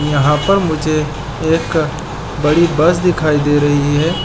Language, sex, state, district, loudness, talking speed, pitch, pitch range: Hindi, male, Chhattisgarh, Balrampur, -15 LUFS, 140 wpm, 155 Hz, 145-165 Hz